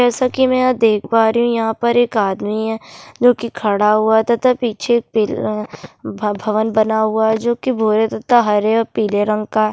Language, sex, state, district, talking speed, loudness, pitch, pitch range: Hindi, female, Chhattisgarh, Kabirdham, 215 wpm, -16 LUFS, 220 Hz, 215-235 Hz